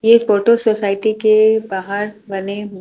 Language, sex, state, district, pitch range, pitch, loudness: Hindi, female, Delhi, New Delhi, 200-220 Hz, 210 Hz, -16 LUFS